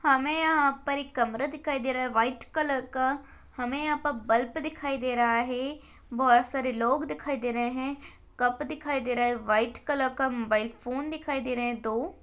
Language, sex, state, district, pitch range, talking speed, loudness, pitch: Hindi, female, Chhattisgarh, Sarguja, 240-285 Hz, 205 wpm, -28 LUFS, 260 Hz